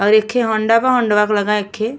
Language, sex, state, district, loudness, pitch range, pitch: Bhojpuri, female, Uttar Pradesh, Ghazipur, -15 LUFS, 210-230 Hz, 215 Hz